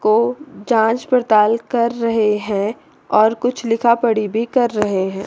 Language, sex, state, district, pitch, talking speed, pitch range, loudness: Hindi, female, Chandigarh, Chandigarh, 225 Hz, 160 wpm, 210-240 Hz, -17 LUFS